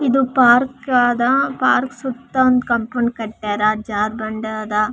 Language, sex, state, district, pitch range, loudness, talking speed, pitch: Kannada, female, Karnataka, Raichur, 215-260 Hz, -18 LUFS, 120 wpm, 240 Hz